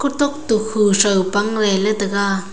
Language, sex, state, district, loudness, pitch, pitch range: Wancho, female, Arunachal Pradesh, Longding, -17 LUFS, 205 Hz, 200-220 Hz